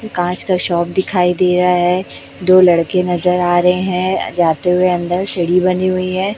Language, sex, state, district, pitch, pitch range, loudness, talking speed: Hindi, female, Chhattisgarh, Raipur, 180 Hz, 175-185 Hz, -14 LUFS, 190 wpm